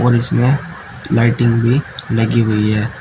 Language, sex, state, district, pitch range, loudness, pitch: Hindi, male, Uttar Pradesh, Shamli, 115-130 Hz, -15 LUFS, 120 Hz